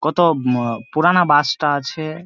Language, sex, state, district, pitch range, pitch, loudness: Bengali, male, West Bengal, Dakshin Dinajpur, 140-165 Hz, 155 Hz, -17 LUFS